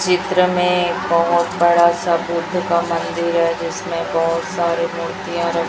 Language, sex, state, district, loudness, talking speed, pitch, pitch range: Hindi, female, Chhattisgarh, Raipur, -18 LUFS, 160 wpm, 170 Hz, 170-175 Hz